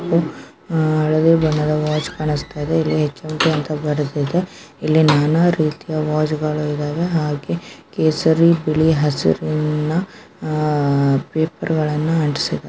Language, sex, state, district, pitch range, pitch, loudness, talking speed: Kannada, female, Karnataka, Chamarajanagar, 150-160 Hz, 155 Hz, -18 LUFS, 95 wpm